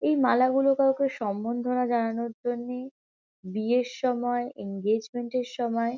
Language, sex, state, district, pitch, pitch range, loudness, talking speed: Bengali, female, West Bengal, Kolkata, 245 Hz, 230-255 Hz, -27 LUFS, 120 wpm